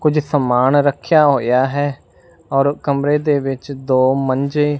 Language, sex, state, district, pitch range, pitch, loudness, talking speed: Punjabi, male, Punjab, Fazilka, 135-150 Hz, 140 Hz, -16 LUFS, 150 wpm